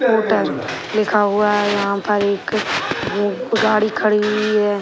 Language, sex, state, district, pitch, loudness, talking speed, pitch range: Hindi, female, Uttar Pradesh, Gorakhpur, 210 Hz, -18 LUFS, 135 wpm, 205-215 Hz